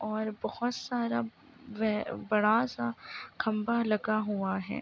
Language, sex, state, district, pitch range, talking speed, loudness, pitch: Hindi, female, Uttar Pradesh, Ghazipur, 210-235 Hz, 110 wpm, -31 LUFS, 215 Hz